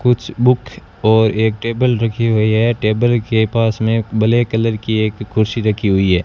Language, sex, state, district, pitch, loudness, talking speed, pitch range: Hindi, male, Rajasthan, Bikaner, 110 Hz, -16 LUFS, 190 wpm, 110-120 Hz